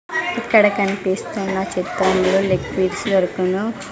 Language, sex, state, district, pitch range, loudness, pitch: Telugu, female, Andhra Pradesh, Sri Satya Sai, 185-210 Hz, -19 LUFS, 195 Hz